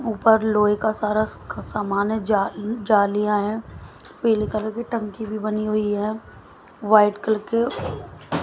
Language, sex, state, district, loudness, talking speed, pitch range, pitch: Hindi, female, Haryana, Jhajjar, -22 LUFS, 140 wpm, 205-220 Hz, 215 Hz